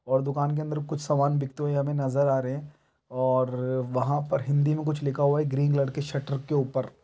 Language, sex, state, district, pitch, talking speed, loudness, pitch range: Maithili, male, Bihar, Araria, 140 Hz, 240 wpm, -27 LUFS, 130-145 Hz